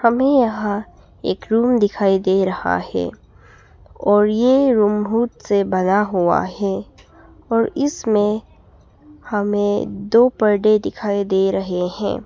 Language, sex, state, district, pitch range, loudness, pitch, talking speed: Hindi, female, Arunachal Pradesh, Papum Pare, 195-230 Hz, -18 LUFS, 205 Hz, 120 wpm